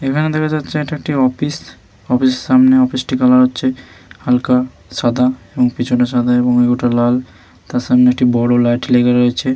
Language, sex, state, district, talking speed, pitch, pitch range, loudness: Bengali, male, West Bengal, Malda, 175 wpm, 125 Hz, 120-130 Hz, -14 LUFS